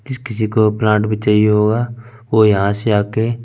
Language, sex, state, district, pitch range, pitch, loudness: Hindi, male, Punjab, Fazilka, 105-115 Hz, 110 Hz, -15 LUFS